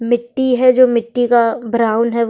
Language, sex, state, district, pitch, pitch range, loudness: Hindi, female, Chhattisgarh, Sukma, 235 Hz, 230-250 Hz, -14 LUFS